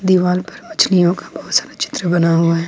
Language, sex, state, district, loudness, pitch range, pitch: Hindi, female, Jharkhand, Ranchi, -16 LUFS, 170-180 Hz, 175 Hz